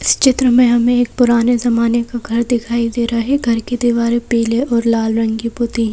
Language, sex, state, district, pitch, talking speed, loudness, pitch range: Hindi, female, Madhya Pradesh, Bhopal, 235 Hz, 230 wpm, -15 LUFS, 230-245 Hz